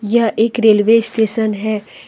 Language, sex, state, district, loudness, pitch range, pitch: Hindi, female, Jharkhand, Deoghar, -14 LUFS, 215-230 Hz, 220 Hz